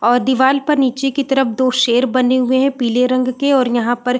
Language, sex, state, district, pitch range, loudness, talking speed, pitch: Hindi, female, Uttarakhand, Uttarkashi, 250-270 Hz, -15 LUFS, 230 wpm, 255 Hz